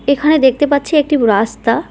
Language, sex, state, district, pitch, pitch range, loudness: Bengali, female, West Bengal, Cooch Behar, 280 Hz, 250-295 Hz, -13 LUFS